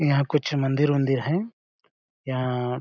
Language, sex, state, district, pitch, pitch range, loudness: Hindi, male, Chhattisgarh, Balrampur, 140 Hz, 130-150 Hz, -24 LUFS